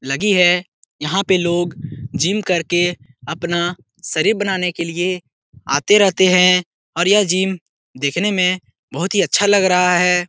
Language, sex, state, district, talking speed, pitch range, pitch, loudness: Hindi, male, Bihar, Araria, 150 wpm, 170-190 Hz, 180 Hz, -16 LUFS